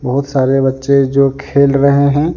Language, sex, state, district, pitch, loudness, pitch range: Hindi, male, Jharkhand, Deoghar, 140 Hz, -12 LUFS, 135-140 Hz